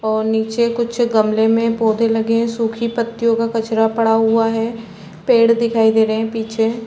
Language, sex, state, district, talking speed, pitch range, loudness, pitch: Hindi, female, Chhattisgarh, Raigarh, 190 wpm, 220-230 Hz, -16 LUFS, 225 Hz